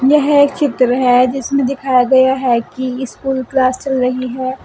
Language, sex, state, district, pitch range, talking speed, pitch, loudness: Hindi, female, Uttar Pradesh, Saharanpur, 255-270 Hz, 180 wpm, 260 Hz, -14 LUFS